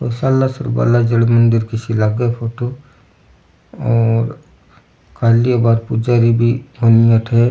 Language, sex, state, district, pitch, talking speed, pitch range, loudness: Rajasthani, male, Rajasthan, Churu, 115 Hz, 120 wpm, 115-120 Hz, -15 LUFS